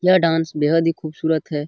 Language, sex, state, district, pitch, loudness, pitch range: Hindi, male, Bihar, Jamui, 160 Hz, -19 LUFS, 155-165 Hz